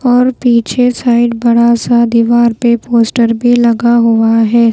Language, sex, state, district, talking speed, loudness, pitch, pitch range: Hindi, female, Bihar, Patna, 150 wpm, -10 LUFS, 235 Hz, 230-240 Hz